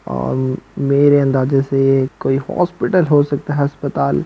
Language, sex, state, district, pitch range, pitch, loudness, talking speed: Hindi, male, Bihar, Sitamarhi, 130-145 Hz, 135 Hz, -16 LUFS, 140 wpm